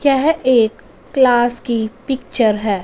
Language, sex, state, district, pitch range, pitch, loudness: Hindi, female, Punjab, Fazilka, 225-265 Hz, 240 Hz, -16 LUFS